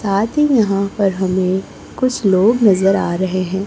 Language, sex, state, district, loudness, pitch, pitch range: Hindi, female, Chhattisgarh, Raipur, -16 LUFS, 195 Hz, 185-215 Hz